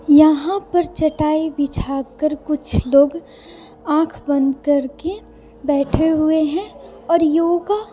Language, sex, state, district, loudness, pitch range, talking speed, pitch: Hindi, female, Bihar, Patna, -18 LUFS, 290-330 Hz, 105 wpm, 310 Hz